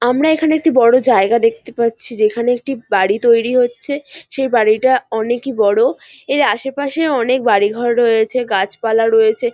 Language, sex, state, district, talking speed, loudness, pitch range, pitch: Bengali, female, West Bengal, North 24 Parganas, 170 wpm, -15 LUFS, 225-275 Hz, 245 Hz